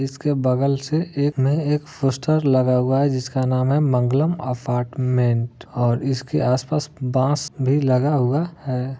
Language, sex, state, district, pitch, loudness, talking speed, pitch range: Hindi, male, Bihar, Muzaffarpur, 135 Hz, -21 LUFS, 155 wpm, 125-145 Hz